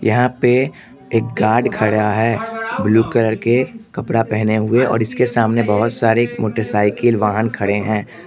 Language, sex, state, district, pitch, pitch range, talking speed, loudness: Hindi, male, Arunachal Pradesh, Lower Dibang Valley, 115 Hz, 110-120 Hz, 150 wpm, -17 LUFS